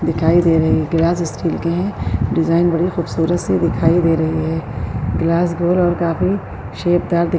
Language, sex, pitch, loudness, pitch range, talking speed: Urdu, female, 170 Hz, -17 LUFS, 160-175 Hz, 185 wpm